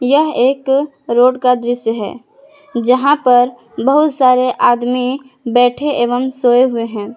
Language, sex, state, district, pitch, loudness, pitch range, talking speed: Hindi, female, Jharkhand, Garhwa, 250 Hz, -14 LUFS, 245-275 Hz, 135 wpm